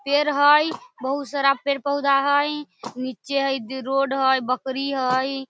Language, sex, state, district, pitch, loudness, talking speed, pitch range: Maithili, female, Bihar, Samastipur, 275 Hz, -22 LUFS, 130 wpm, 265-285 Hz